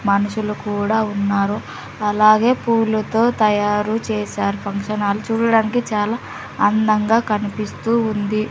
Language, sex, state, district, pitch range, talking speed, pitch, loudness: Telugu, female, Andhra Pradesh, Sri Satya Sai, 205-220 Hz, 100 wpm, 215 Hz, -18 LUFS